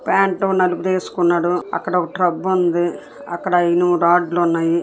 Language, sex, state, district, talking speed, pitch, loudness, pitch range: Telugu, female, Andhra Pradesh, Visakhapatnam, 125 wpm, 175 Hz, -18 LUFS, 175-185 Hz